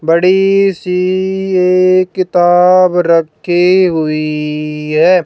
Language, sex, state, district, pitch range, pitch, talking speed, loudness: Hindi, female, Haryana, Jhajjar, 165-185 Hz, 180 Hz, 80 wpm, -11 LUFS